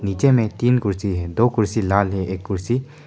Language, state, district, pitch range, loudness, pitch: Hindi, Arunachal Pradesh, Papum Pare, 95-120 Hz, -20 LUFS, 105 Hz